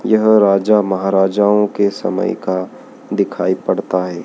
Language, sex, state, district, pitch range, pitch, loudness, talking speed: Hindi, male, Madhya Pradesh, Dhar, 95-105 Hz, 100 Hz, -15 LUFS, 125 wpm